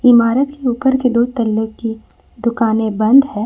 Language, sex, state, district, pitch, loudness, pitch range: Hindi, female, Jharkhand, Ranchi, 235 Hz, -15 LUFS, 220-255 Hz